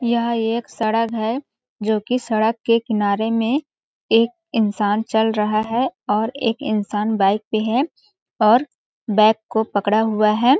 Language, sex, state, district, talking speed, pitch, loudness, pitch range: Hindi, female, Chhattisgarh, Balrampur, 155 wpm, 225 Hz, -19 LUFS, 215-235 Hz